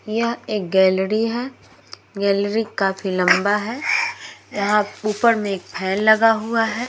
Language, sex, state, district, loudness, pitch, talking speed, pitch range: Hindi, female, Uttar Pradesh, Muzaffarnagar, -19 LUFS, 215 Hz, 140 wpm, 200-230 Hz